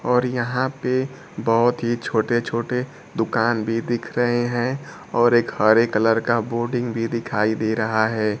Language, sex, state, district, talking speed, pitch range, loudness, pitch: Hindi, male, Bihar, Kaimur, 165 wpm, 110-120 Hz, -21 LUFS, 120 Hz